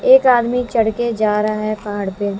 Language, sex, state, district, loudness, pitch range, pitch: Hindi, female, Haryana, Jhajjar, -17 LUFS, 210-240 Hz, 215 Hz